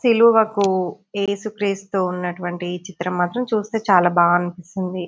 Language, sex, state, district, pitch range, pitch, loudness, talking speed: Telugu, female, Telangana, Nalgonda, 180-210 Hz, 190 Hz, -20 LUFS, 120 wpm